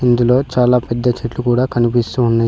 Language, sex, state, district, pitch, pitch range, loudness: Telugu, male, Telangana, Mahabubabad, 120 Hz, 120-125 Hz, -15 LUFS